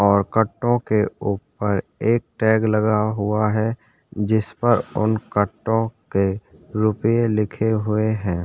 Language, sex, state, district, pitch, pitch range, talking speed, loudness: Hindi, male, Chhattisgarh, Sukma, 110 Hz, 105-110 Hz, 135 wpm, -21 LUFS